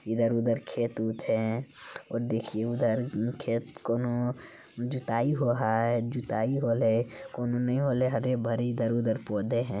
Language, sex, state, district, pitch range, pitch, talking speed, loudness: Hindi, male, Bihar, Jamui, 115-125 Hz, 120 Hz, 130 wpm, -29 LUFS